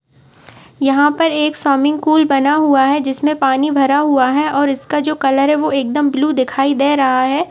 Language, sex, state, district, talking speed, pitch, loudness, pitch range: Hindi, female, Uttar Pradesh, Etah, 185 wpm, 285 Hz, -14 LUFS, 270-300 Hz